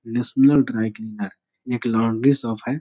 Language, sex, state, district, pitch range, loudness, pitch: Hindi, male, Bihar, Araria, 110-135 Hz, -21 LUFS, 120 Hz